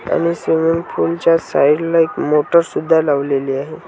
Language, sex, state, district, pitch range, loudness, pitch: Marathi, male, Maharashtra, Washim, 140-165 Hz, -16 LUFS, 160 Hz